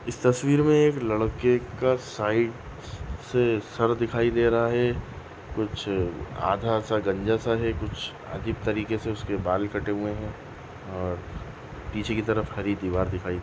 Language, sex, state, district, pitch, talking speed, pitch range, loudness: Hindi, male, Maharashtra, Sindhudurg, 110 Hz, 145 wpm, 100-120 Hz, -26 LUFS